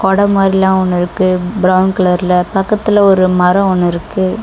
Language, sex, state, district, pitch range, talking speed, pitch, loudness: Tamil, female, Tamil Nadu, Chennai, 180-195 Hz, 150 wpm, 190 Hz, -12 LUFS